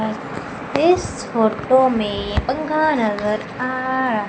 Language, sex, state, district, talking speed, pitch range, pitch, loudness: Hindi, female, Madhya Pradesh, Umaria, 100 wpm, 215-260 Hz, 255 Hz, -19 LUFS